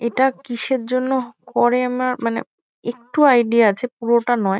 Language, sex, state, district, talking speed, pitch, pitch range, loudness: Bengali, female, West Bengal, Kolkata, 145 wpm, 240 Hz, 235-255 Hz, -19 LUFS